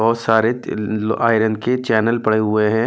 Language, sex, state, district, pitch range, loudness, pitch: Hindi, male, Delhi, New Delhi, 110-115 Hz, -18 LUFS, 110 Hz